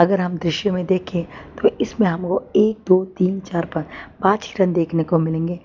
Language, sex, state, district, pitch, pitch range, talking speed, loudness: Hindi, female, Gujarat, Valsad, 180 Hz, 170-190 Hz, 200 wpm, -20 LUFS